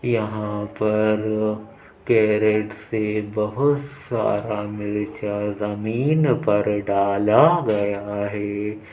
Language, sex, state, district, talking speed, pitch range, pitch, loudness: Hindi, male, Uttar Pradesh, Budaun, 80 wpm, 105-110 Hz, 105 Hz, -22 LUFS